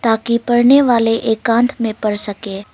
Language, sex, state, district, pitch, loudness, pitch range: Hindi, female, Arunachal Pradesh, Longding, 230 Hz, -15 LUFS, 215-240 Hz